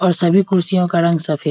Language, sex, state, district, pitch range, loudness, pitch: Hindi, male, Bihar, East Champaran, 170-185 Hz, -16 LUFS, 175 Hz